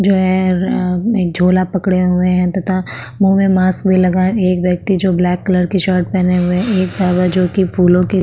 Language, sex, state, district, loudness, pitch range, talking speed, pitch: Hindi, female, Uttarakhand, Tehri Garhwal, -14 LUFS, 180-190 Hz, 235 wpm, 185 Hz